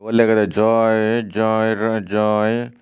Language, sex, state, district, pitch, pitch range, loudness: Chakma, male, Tripura, Unakoti, 110 Hz, 110-115 Hz, -18 LUFS